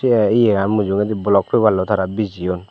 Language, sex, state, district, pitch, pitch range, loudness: Chakma, male, Tripura, Dhalai, 100 Hz, 95-110 Hz, -17 LUFS